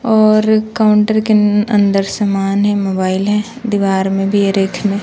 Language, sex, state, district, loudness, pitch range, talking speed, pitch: Hindi, female, Bihar, West Champaran, -14 LUFS, 195-215 Hz, 155 wpm, 205 Hz